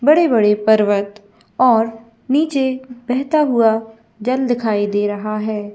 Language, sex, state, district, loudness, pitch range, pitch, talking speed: Hindi, female, Chhattisgarh, Bilaspur, -17 LUFS, 215-255 Hz, 225 Hz, 115 wpm